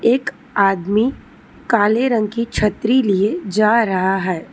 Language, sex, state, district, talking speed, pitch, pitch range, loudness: Hindi, female, Telangana, Hyderabad, 130 wpm, 215 Hz, 195-235 Hz, -17 LUFS